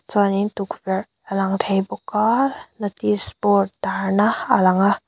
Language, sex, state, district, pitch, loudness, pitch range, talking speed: Mizo, female, Mizoram, Aizawl, 200 Hz, -20 LUFS, 190-205 Hz, 155 wpm